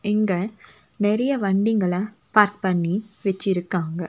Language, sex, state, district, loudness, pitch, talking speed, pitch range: Tamil, female, Tamil Nadu, Nilgiris, -22 LUFS, 200 Hz, 90 wpm, 180-210 Hz